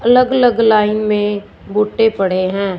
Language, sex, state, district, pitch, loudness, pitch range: Hindi, female, Punjab, Fazilka, 210 Hz, -14 LUFS, 200-225 Hz